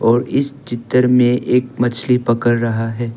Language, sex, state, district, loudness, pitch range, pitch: Hindi, male, Arunachal Pradesh, Longding, -16 LUFS, 120-125 Hz, 120 Hz